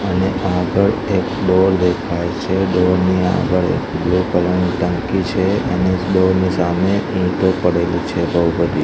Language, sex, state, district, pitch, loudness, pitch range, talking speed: Gujarati, male, Gujarat, Gandhinagar, 90 Hz, -17 LUFS, 90-95 Hz, 170 wpm